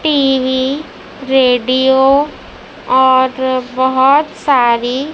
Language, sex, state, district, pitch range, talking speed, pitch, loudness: Hindi, female, Madhya Pradesh, Dhar, 260-275 Hz, 60 wpm, 260 Hz, -12 LUFS